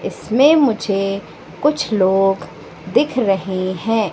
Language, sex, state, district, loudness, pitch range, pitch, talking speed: Hindi, female, Madhya Pradesh, Katni, -17 LUFS, 190-250 Hz, 200 Hz, 100 wpm